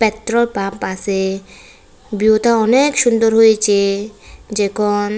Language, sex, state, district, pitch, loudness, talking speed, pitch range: Bengali, female, Tripura, West Tripura, 215 Hz, -15 LUFS, 105 wpm, 200-225 Hz